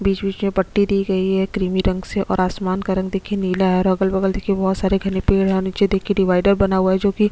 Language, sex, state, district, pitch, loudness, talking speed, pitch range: Hindi, female, Chhattisgarh, Sukma, 190 Hz, -19 LUFS, 285 wpm, 190-195 Hz